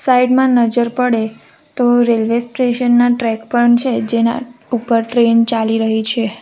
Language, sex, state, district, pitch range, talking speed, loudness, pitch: Gujarati, female, Gujarat, Valsad, 230-245 Hz, 160 wpm, -14 LUFS, 235 Hz